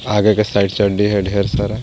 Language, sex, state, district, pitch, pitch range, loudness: Hindi, male, Jharkhand, Garhwa, 105 Hz, 100-105 Hz, -16 LUFS